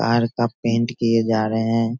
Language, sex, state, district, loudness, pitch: Hindi, male, Bihar, Sitamarhi, -20 LUFS, 115 Hz